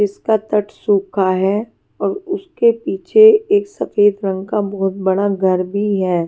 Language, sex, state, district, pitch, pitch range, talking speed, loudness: Hindi, female, Haryana, Charkhi Dadri, 205 Hz, 195-245 Hz, 155 wpm, -16 LUFS